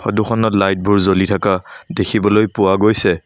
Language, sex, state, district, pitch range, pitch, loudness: Assamese, male, Assam, Sonitpur, 95-110 Hz, 100 Hz, -15 LUFS